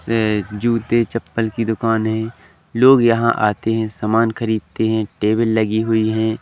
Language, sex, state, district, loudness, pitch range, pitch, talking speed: Hindi, male, Madhya Pradesh, Katni, -18 LUFS, 110-115 Hz, 110 Hz, 160 wpm